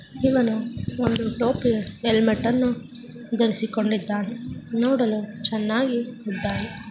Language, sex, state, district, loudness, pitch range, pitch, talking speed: Kannada, female, Karnataka, Chamarajanagar, -24 LUFS, 215-240 Hz, 230 Hz, 80 wpm